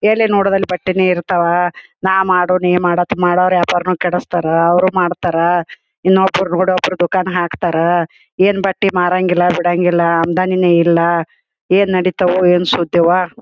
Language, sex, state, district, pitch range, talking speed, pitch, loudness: Kannada, female, Karnataka, Gulbarga, 175-185 Hz, 130 wpm, 180 Hz, -14 LUFS